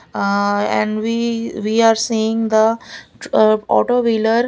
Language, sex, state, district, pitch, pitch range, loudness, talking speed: English, female, Maharashtra, Gondia, 225 Hz, 215-230 Hz, -16 LUFS, 145 wpm